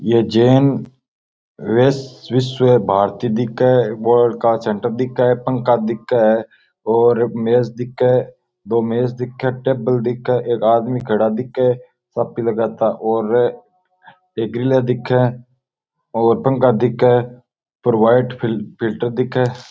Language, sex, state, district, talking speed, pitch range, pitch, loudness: Rajasthani, male, Rajasthan, Nagaur, 120 wpm, 115-125 Hz, 120 Hz, -17 LUFS